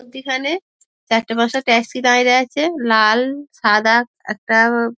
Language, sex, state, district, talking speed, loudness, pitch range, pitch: Bengali, female, West Bengal, Dakshin Dinajpur, 120 wpm, -16 LUFS, 225-265 Hz, 240 Hz